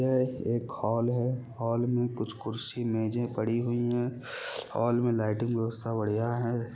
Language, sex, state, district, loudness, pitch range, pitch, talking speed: Hindi, male, Chhattisgarh, Rajnandgaon, -30 LUFS, 115-120 Hz, 120 Hz, 160 wpm